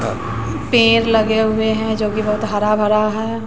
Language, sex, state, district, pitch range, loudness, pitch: Hindi, female, Bihar, West Champaran, 210-220 Hz, -16 LUFS, 215 Hz